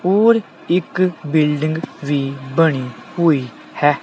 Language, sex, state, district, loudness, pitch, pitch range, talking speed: Punjabi, male, Punjab, Kapurthala, -18 LUFS, 155 Hz, 145-175 Hz, 105 wpm